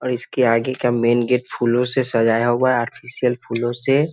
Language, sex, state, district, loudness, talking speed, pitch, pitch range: Hindi, male, Bihar, Muzaffarpur, -19 LUFS, 205 wpm, 120 Hz, 120-125 Hz